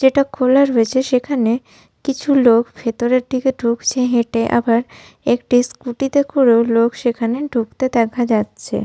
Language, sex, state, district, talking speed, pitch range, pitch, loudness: Bengali, female, West Bengal, Jhargram, 135 wpm, 235-265 Hz, 245 Hz, -17 LUFS